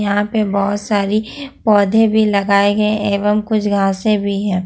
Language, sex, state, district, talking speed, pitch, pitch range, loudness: Hindi, female, Jharkhand, Ranchi, 165 wpm, 205 Hz, 200-215 Hz, -15 LUFS